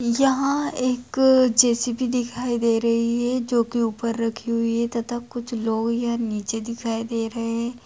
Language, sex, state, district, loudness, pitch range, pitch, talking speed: Hindi, female, Bihar, Begusarai, -22 LUFS, 230-245 Hz, 235 Hz, 170 wpm